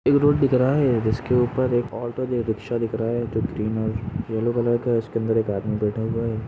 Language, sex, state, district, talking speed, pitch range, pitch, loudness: Hindi, male, Uttar Pradesh, Budaun, 250 wpm, 110-120 Hz, 115 Hz, -23 LUFS